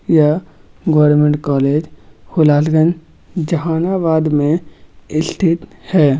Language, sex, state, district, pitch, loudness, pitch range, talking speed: Magahi, male, Bihar, Gaya, 155 Hz, -15 LUFS, 150-165 Hz, 75 wpm